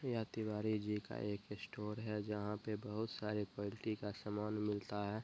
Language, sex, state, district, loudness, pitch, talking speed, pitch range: Hindi, male, Bihar, Gopalganj, -43 LUFS, 105 Hz, 185 wpm, 105-110 Hz